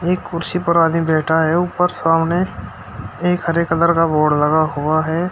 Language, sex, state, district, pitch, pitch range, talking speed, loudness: Hindi, male, Uttar Pradesh, Shamli, 165 Hz, 155-175 Hz, 180 wpm, -17 LUFS